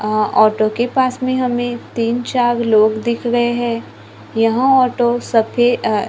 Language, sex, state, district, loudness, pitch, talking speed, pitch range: Hindi, female, Maharashtra, Gondia, -16 LUFS, 240 Hz, 160 wpm, 225-245 Hz